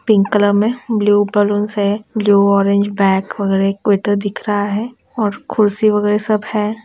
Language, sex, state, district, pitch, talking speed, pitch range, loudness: Hindi, female, Bihar, Sitamarhi, 205 Hz, 175 wpm, 200-215 Hz, -15 LUFS